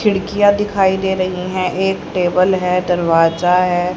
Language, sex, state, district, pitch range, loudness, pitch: Hindi, male, Haryana, Rohtak, 180-190 Hz, -15 LUFS, 185 Hz